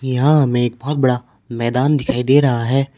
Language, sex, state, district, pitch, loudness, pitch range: Hindi, male, Uttar Pradesh, Shamli, 130 Hz, -16 LUFS, 120-140 Hz